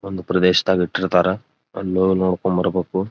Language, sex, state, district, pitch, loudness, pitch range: Kannada, male, Karnataka, Dharwad, 95 Hz, -19 LUFS, 90-95 Hz